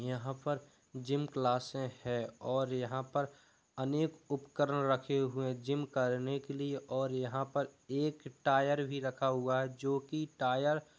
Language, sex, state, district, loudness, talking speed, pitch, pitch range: Hindi, male, Uttar Pradesh, Jalaun, -36 LUFS, 165 wpm, 135 Hz, 130-140 Hz